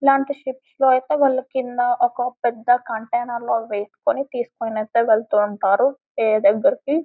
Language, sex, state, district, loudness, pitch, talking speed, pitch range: Telugu, female, Telangana, Karimnagar, -20 LUFS, 245 Hz, 145 wpm, 225-275 Hz